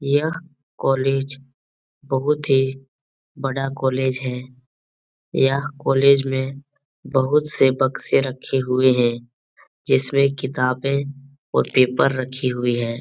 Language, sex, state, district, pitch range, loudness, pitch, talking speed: Hindi, male, Bihar, Jamui, 130-140 Hz, -20 LUFS, 135 Hz, 110 wpm